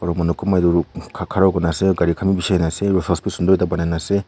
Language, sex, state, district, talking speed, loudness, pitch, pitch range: Nagamese, male, Nagaland, Kohima, 250 wpm, -18 LUFS, 90 Hz, 85-95 Hz